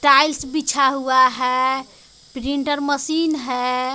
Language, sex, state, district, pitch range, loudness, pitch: Hindi, female, Jharkhand, Garhwa, 260-290 Hz, -19 LUFS, 270 Hz